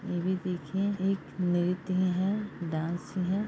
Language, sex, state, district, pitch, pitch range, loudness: Hindi, male, Bihar, East Champaran, 185 Hz, 175-195 Hz, -31 LUFS